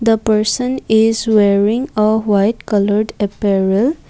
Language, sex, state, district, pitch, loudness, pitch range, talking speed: English, female, Assam, Kamrup Metropolitan, 215 Hz, -15 LUFS, 205-225 Hz, 115 wpm